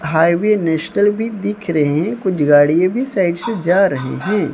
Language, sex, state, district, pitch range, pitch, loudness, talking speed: Hindi, male, Odisha, Sambalpur, 160-205 Hz, 180 Hz, -16 LUFS, 185 wpm